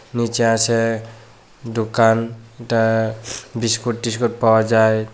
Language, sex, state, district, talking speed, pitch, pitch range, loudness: Bengali, male, Tripura, Unakoti, 80 wpm, 115 Hz, 110-115 Hz, -18 LUFS